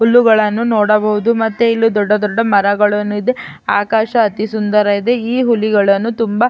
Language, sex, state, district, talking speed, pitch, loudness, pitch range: Kannada, female, Karnataka, Chamarajanagar, 150 wpm, 220 Hz, -14 LUFS, 210-230 Hz